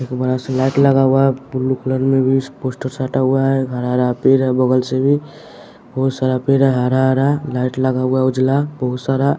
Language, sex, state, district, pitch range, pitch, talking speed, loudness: Hindi, male, Bihar, West Champaran, 130-135 Hz, 130 Hz, 215 wpm, -16 LUFS